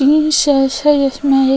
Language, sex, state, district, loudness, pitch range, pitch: Hindi, female, Goa, North and South Goa, -13 LUFS, 270-295 Hz, 280 Hz